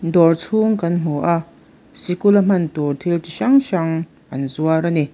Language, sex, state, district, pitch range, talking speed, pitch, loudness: Mizo, female, Mizoram, Aizawl, 160-180 Hz, 185 wpm, 170 Hz, -18 LUFS